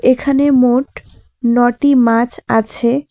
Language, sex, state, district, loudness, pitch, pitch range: Bengali, female, West Bengal, Alipurduar, -13 LUFS, 250 Hz, 235-275 Hz